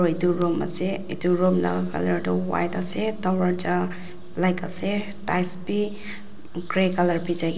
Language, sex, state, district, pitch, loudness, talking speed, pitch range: Nagamese, female, Nagaland, Dimapur, 180 Hz, -22 LUFS, 150 wpm, 170-185 Hz